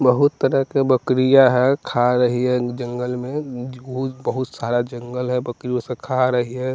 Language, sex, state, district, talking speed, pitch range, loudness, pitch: Hindi, male, Bihar, West Champaran, 170 wpm, 125-130 Hz, -20 LUFS, 125 Hz